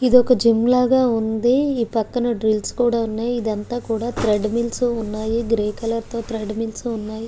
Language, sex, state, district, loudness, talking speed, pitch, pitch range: Telugu, female, Andhra Pradesh, Guntur, -20 LUFS, 175 wpm, 230 Hz, 220-245 Hz